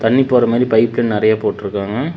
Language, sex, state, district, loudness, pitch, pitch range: Tamil, male, Tamil Nadu, Namakkal, -15 LUFS, 115 Hz, 110-125 Hz